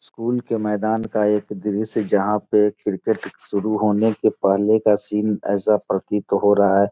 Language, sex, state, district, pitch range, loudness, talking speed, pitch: Hindi, male, Bihar, Gopalganj, 100-110 Hz, -20 LUFS, 175 wpm, 105 Hz